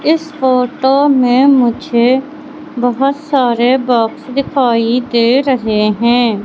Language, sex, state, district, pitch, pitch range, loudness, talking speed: Hindi, female, Madhya Pradesh, Katni, 255 Hz, 240-275 Hz, -12 LUFS, 100 wpm